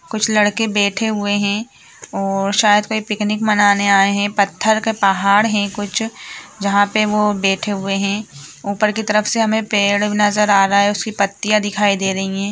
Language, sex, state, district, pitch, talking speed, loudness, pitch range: Hindi, female, Jharkhand, Jamtara, 205 Hz, 185 wpm, -16 LUFS, 200-215 Hz